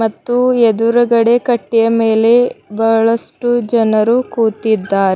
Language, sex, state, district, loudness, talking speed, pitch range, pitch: Kannada, female, Karnataka, Bidar, -13 LUFS, 80 wpm, 220-240 Hz, 230 Hz